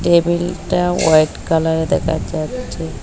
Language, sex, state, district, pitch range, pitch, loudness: Bengali, female, Assam, Hailakandi, 155-170 Hz, 160 Hz, -17 LUFS